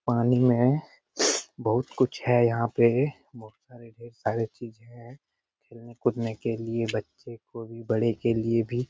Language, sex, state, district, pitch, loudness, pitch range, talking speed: Hindi, male, Bihar, Lakhisarai, 115 Hz, -26 LUFS, 115-120 Hz, 160 wpm